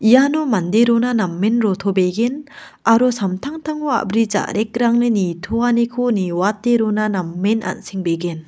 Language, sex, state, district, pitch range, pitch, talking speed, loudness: Garo, female, Meghalaya, West Garo Hills, 190-240 Hz, 220 Hz, 100 wpm, -18 LUFS